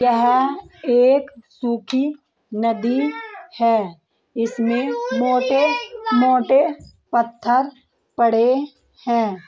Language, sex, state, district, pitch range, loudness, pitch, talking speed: Hindi, female, Bihar, Begusarai, 235-280 Hz, -19 LUFS, 250 Hz, 65 wpm